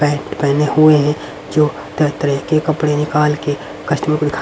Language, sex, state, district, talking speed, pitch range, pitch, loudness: Hindi, male, Haryana, Rohtak, 190 wpm, 145-150 Hz, 150 Hz, -16 LUFS